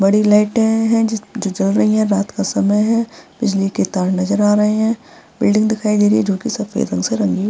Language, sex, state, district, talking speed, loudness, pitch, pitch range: Hindi, female, Bihar, Vaishali, 250 wpm, -16 LUFS, 210 Hz, 200-220 Hz